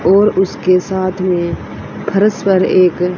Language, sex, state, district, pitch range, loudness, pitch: Hindi, female, Haryana, Rohtak, 180-195 Hz, -14 LUFS, 185 Hz